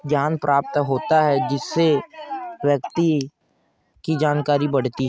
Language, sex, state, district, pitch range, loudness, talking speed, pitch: Hindi, male, Chhattisgarh, Korba, 140-160 Hz, -20 LUFS, 120 wpm, 145 Hz